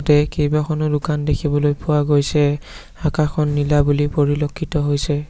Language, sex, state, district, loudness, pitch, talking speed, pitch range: Assamese, male, Assam, Sonitpur, -19 LUFS, 150 Hz, 125 wpm, 145-150 Hz